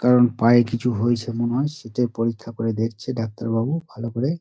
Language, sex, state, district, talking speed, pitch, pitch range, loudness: Bengali, male, West Bengal, Dakshin Dinajpur, 175 wpm, 120 Hz, 115-125 Hz, -22 LUFS